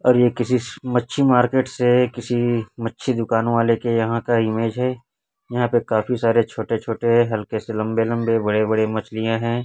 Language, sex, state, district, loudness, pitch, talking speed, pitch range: Hindi, male, Chhattisgarh, Raipur, -20 LUFS, 115 Hz, 180 wpm, 115-120 Hz